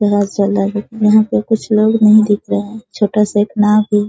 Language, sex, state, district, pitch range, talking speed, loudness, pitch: Hindi, female, Bihar, Sitamarhi, 205-215 Hz, 205 wpm, -13 LUFS, 210 Hz